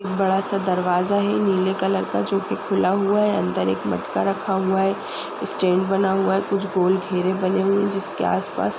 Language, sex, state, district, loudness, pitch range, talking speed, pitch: Hindi, male, Uttar Pradesh, Budaun, -21 LUFS, 185-195 Hz, 210 wpm, 195 Hz